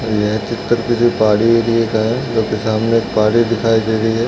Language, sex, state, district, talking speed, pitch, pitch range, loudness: Hindi, male, Uttarakhand, Uttarkashi, 210 wpm, 115 Hz, 110-115 Hz, -15 LUFS